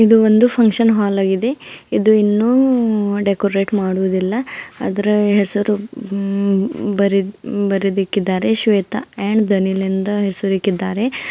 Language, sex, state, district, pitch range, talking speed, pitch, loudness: Kannada, female, Karnataka, Bidar, 195-220 Hz, 100 wpm, 205 Hz, -16 LUFS